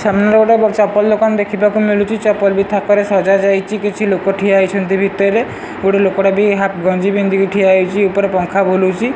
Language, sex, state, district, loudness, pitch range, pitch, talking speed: Odia, male, Odisha, Sambalpur, -13 LUFS, 195-210 Hz, 200 Hz, 175 wpm